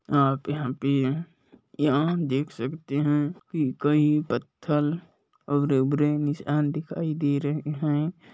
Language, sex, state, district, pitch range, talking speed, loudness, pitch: Hindi, male, Chhattisgarh, Balrampur, 140-155 Hz, 115 wpm, -26 LUFS, 145 Hz